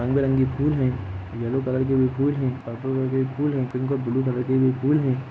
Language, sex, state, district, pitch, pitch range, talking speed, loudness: Hindi, male, Jharkhand, Jamtara, 130 Hz, 130-135 Hz, 270 wpm, -23 LUFS